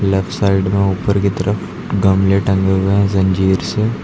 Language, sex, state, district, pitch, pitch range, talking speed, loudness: Hindi, male, Uttar Pradesh, Lucknow, 95 Hz, 95-100 Hz, 180 wpm, -15 LUFS